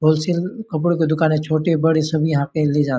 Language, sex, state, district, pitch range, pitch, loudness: Hindi, male, Chhattisgarh, Bastar, 155-160 Hz, 155 Hz, -19 LUFS